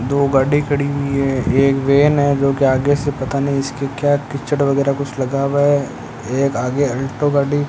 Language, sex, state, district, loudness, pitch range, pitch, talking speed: Hindi, male, Rajasthan, Bikaner, -17 LUFS, 135-145 Hz, 140 Hz, 210 wpm